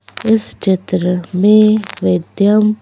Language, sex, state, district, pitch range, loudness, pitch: Hindi, female, Madhya Pradesh, Bhopal, 180-215 Hz, -13 LUFS, 200 Hz